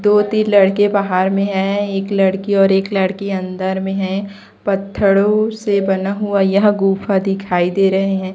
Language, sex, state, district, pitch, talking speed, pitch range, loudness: Hindi, female, Chhattisgarh, Raipur, 195 Hz, 170 wpm, 190-205 Hz, -16 LUFS